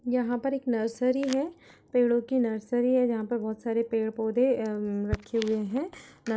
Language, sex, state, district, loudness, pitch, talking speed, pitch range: Hindi, female, Uttar Pradesh, Budaun, -28 LUFS, 240 Hz, 180 wpm, 220-255 Hz